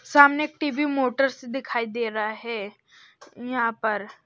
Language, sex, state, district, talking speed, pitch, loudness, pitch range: Hindi, male, Maharashtra, Washim, 140 wpm, 245 Hz, -24 LUFS, 225-280 Hz